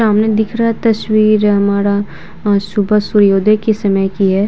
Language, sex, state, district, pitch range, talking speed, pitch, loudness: Hindi, female, Bihar, Vaishali, 200-215 Hz, 160 wpm, 210 Hz, -13 LUFS